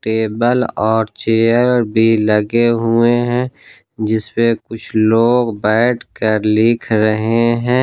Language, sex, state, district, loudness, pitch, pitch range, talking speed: Hindi, male, Jharkhand, Ranchi, -15 LUFS, 115 Hz, 110-120 Hz, 115 wpm